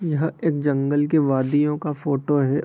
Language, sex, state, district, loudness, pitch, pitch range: Hindi, male, Bihar, Begusarai, -21 LUFS, 145 Hz, 140-155 Hz